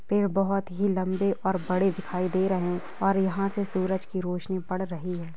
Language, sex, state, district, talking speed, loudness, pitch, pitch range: Hindi, female, Jharkhand, Sahebganj, 210 wpm, -27 LUFS, 190 Hz, 180-195 Hz